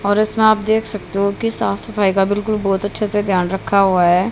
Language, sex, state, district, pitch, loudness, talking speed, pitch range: Hindi, female, Haryana, Rohtak, 205 Hz, -17 LUFS, 250 wpm, 195-215 Hz